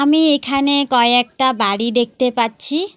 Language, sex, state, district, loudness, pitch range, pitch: Bengali, female, West Bengal, Alipurduar, -15 LUFS, 235-285 Hz, 255 Hz